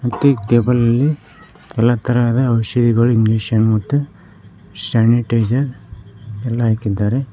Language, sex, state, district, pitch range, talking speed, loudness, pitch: Kannada, male, Karnataka, Koppal, 110-120 Hz, 100 wpm, -16 LUFS, 115 Hz